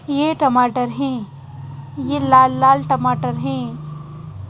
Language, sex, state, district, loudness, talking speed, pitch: Hindi, female, Madhya Pradesh, Bhopal, -17 LUFS, 105 wpm, 230 Hz